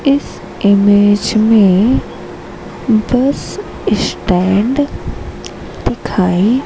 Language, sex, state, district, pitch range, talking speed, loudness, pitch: Hindi, female, Madhya Pradesh, Katni, 200-250 Hz, 55 wpm, -13 LUFS, 215 Hz